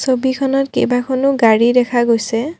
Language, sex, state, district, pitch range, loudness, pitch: Assamese, female, Assam, Kamrup Metropolitan, 235-270 Hz, -15 LUFS, 255 Hz